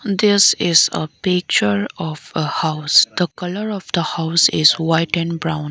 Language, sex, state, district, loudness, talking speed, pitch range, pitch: English, female, Arunachal Pradesh, Lower Dibang Valley, -17 LUFS, 170 wpm, 155-180 Hz, 165 Hz